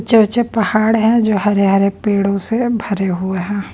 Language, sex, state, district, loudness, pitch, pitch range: Hindi, female, Bihar, Patna, -15 LUFS, 205 Hz, 200-225 Hz